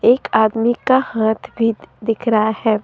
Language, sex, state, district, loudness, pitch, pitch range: Hindi, female, Jharkhand, Deoghar, -17 LUFS, 225 Hz, 220-235 Hz